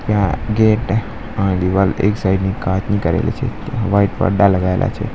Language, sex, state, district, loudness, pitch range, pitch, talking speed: Gujarati, male, Gujarat, Valsad, -17 LUFS, 95-110 Hz, 100 Hz, 165 wpm